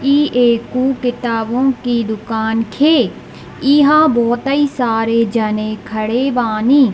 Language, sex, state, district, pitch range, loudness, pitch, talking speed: Hindi, female, Bihar, East Champaran, 225-270 Hz, -15 LUFS, 240 Hz, 105 wpm